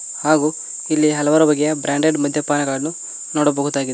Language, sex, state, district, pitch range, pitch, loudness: Kannada, male, Karnataka, Koppal, 145-155 Hz, 150 Hz, -18 LUFS